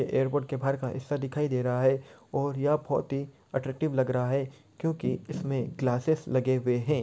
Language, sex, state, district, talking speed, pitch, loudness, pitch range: Hindi, male, Bihar, Darbhanga, 195 wpm, 135 Hz, -29 LUFS, 130-145 Hz